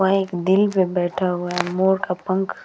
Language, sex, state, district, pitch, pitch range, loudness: Hindi, female, Uttar Pradesh, Hamirpur, 185 Hz, 180-190 Hz, -21 LUFS